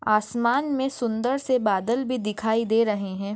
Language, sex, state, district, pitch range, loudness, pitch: Hindi, female, Maharashtra, Sindhudurg, 215-255 Hz, -24 LUFS, 230 Hz